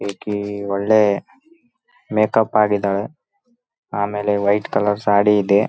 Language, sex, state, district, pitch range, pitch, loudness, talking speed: Kannada, male, Karnataka, Raichur, 100-115 Hz, 105 Hz, -18 LUFS, 190 wpm